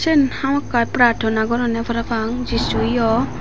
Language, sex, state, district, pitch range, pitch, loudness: Chakma, female, Tripura, Dhalai, 230-250 Hz, 235 Hz, -19 LUFS